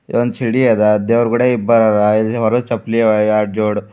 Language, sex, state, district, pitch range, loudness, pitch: Kannada, male, Karnataka, Bidar, 105-120 Hz, -14 LUFS, 110 Hz